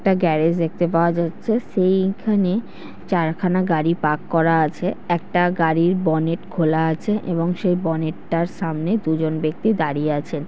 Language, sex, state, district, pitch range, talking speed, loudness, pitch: Bengali, female, West Bengal, North 24 Parganas, 160-185 Hz, 145 wpm, -20 LUFS, 170 Hz